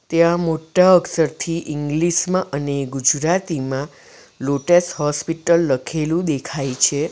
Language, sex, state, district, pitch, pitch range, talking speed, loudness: Gujarati, female, Gujarat, Valsad, 160 Hz, 145-170 Hz, 100 wpm, -19 LUFS